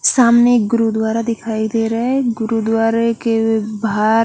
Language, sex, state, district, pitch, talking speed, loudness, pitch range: Hindi, female, Chandigarh, Chandigarh, 225 Hz, 125 wpm, -16 LUFS, 220-230 Hz